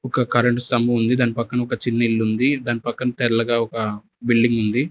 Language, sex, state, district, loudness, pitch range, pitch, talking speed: Telugu, male, Andhra Pradesh, Sri Satya Sai, -20 LUFS, 115-125 Hz, 120 Hz, 195 wpm